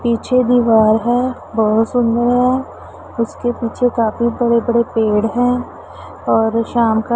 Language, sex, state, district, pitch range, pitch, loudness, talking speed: Hindi, female, Punjab, Pathankot, 220-245 Hz, 235 Hz, -16 LUFS, 135 wpm